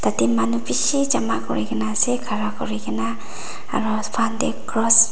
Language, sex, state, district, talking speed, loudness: Nagamese, female, Nagaland, Dimapur, 165 wpm, -21 LUFS